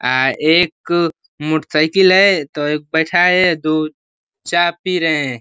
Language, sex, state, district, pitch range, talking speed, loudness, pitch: Hindi, male, Uttar Pradesh, Ghazipur, 150-175 Hz, 135 wpm, -15 LUFS, 160 Hz